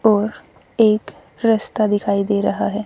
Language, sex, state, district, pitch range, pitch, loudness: Hindi, female, Haryana, Rohtak, 205-220 Hz, 215 Hz, -18 LUFS